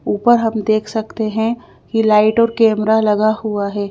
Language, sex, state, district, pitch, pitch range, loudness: Hindi, female, Madhya Pradesh, Bhopal, 220 Hz, 215-225 Hz, -16 LUFS